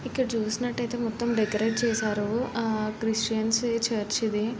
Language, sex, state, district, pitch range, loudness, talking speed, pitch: Telugu, female, Andhra Pradesh, Srikakulam, 215-235 Hz, -27 LUFS, 115 wpm, 225 Hz